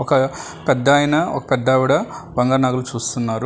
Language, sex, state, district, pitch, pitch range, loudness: Telugu, male, Telangana, Hyderabad, 130 Hz, 125-135 Hz, -18 LUFS